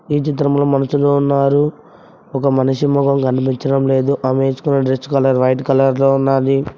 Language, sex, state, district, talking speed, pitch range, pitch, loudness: Telugu, male, Telangana, Mahabubabad, 140 wpm, 135-140 Hz, 135 Hz, -15 LUFS